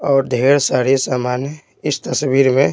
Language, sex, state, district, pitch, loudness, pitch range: Hindi, male, Bihar, Patna, 135 Hz, -16 LUFS, 130-140 Hz